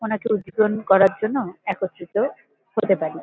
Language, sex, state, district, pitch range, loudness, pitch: Bengali, female, West Bengal, North 24 Parganas, 190-220 Hz, -22 LUFS, 200 Hz